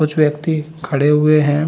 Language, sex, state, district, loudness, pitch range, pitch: Hindi, male, Bihar, Saran, -16 LUFS, 150-155 Hz, 150 Hz